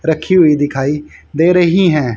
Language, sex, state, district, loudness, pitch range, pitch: Hindi, male, Haryana, Jhajjar, -12 LUFS, 145-175 Hz, 155 Hz